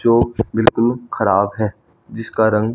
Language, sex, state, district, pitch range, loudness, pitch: Hindi, male, Haryana, Rohtak, 105-115 Hz, -17 LUFS, 115 Hz